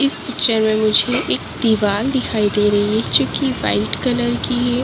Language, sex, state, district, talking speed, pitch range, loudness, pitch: Hindi, female, Uttarakhand, Uttarkashi, 185 wpm, 215-250 Hz, -17 LUFS, 225 Hz